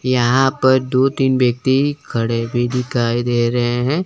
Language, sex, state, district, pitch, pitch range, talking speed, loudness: Hindi, male, Chandigarh, Chandigarh, 125 Hz, 120-130 Hz, 160 wpm, -17 LUFS